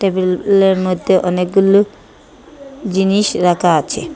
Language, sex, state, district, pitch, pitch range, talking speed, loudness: Bengali, female, Assam, Hailakandi, 190 Hz, 180-200 Hz, 100 wpm, -14 LUFS